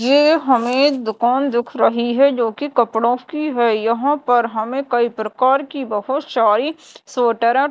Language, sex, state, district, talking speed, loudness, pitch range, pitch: Hindi, female, Madhya Pradesh, Dhar, 165 wpm, -17 LUFS, 235-280 Hz, 250 Hz